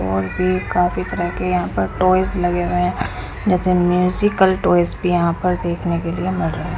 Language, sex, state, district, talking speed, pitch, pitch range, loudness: Hindi, female, Punjab, Kapurthala, 195 wpm, 175 Hz, 170-185 Hz, -18 LUFS